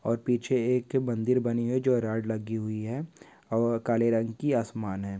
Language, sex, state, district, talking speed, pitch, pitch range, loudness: Hindi, male, Uttar Pradesh, Etah, 210 wpm, 115 Hz, 110-125 Hz, -28 LUFS